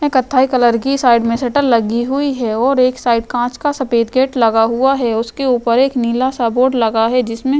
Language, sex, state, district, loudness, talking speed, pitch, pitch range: Hindi, female, Uttar Pradesh, Jyotiba Phule Nagar, -15 LUFS, 220 wpm, 250 Hz, 235-265 Hz